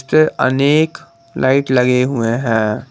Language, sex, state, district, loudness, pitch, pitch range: Hindi, male, Jharkhand, Garhwa, -15 LUFS, 130 Hz, 125-140 Hz